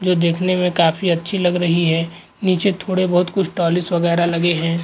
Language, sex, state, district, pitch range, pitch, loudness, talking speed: Hindi, male, Uttar Pradesh, Muzaffarnagar, 170-185 Hz, 175 Hz, -18 LUFS, 200 wpm